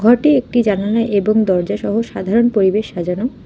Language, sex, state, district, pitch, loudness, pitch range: Bengali, female, West Bengal, Alipurduar, 215 Hz, -16 LUFS, 195-235 Hz